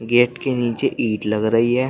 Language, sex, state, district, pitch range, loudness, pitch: Hindi, male, Uttar Pradesh, Shamli, 115-125 Hz, -19 LUFS, 120 Hz